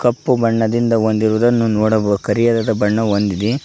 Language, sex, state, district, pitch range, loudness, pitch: Kannada, male, Karnataka, Koppal, 105-115 Hz, -16 LUFS, 110 Hz